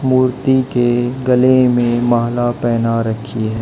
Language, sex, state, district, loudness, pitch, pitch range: Hindi, male, Haryana, Jhajjar, -15 LUFS, 120 Hz, 120-130 Hz